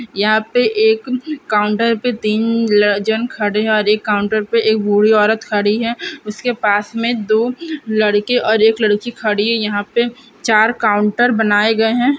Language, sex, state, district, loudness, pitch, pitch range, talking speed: Hindi, female, Bihar, Purnia, -15 LUFS, 220 Hz, 210-235 Hz, 170 wpm